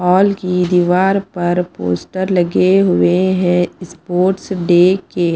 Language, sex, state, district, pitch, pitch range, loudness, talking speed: Hindi, female, Punjab, Pathankot, 180 Hz, 175-190 Hz, -14 LUFS, 125 wpm